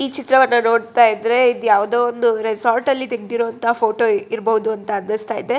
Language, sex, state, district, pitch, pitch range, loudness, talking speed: Kannada, female, Karnataka, Shimoga, 235 Hz, 220-240 Hz, -17 LUFS, 160 wpm